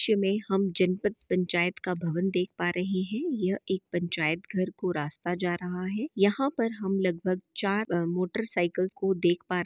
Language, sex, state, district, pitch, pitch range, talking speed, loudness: Hindi, female, Chhattisgarh, Bastar, 185 Hz, 175-195 Hz, 185 wpm, -29 LUFS